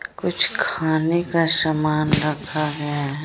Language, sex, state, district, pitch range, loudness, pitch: Hindi, female, Bihar, Kaimur, 150-160 Hz, -19 LUFS, 155 Hz